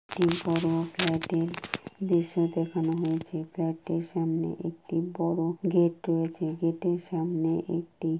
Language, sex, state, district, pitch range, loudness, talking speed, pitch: Bengali, female, West Bengal, Kolkata, 165-170 Hz, -29 LUFS, 125 wpm, 165 Hz